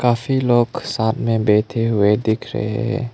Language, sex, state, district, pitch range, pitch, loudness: Hindi, male, Arunachal Pradesh, Lower Dibang Valley, 110-120 Hz, 115 Hz, -18 LUFS